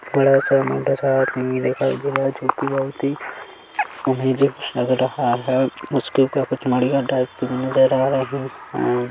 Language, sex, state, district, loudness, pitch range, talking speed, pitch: Hindi, male, Chhattisgarh, Kabirdham, -20 LUFS, 130-135 Hz, 165 wpm, 130 Hz